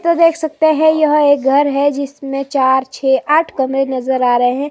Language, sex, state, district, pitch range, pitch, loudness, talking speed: Hindi, female, Himachal Pradesh, Shimla, 265-310 Hz, 280 Hz, -14 LUFS, 215 wpm